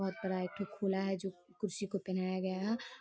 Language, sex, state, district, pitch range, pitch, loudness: Hindi, female, Bihar, Darbhanga, 185-200 Hz, 190 Hz, -38 LUFS